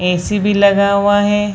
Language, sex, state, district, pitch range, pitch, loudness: Hindi, female, Bihar, Purnia, 200-205 Hz, 200 Hz, -13 LUFS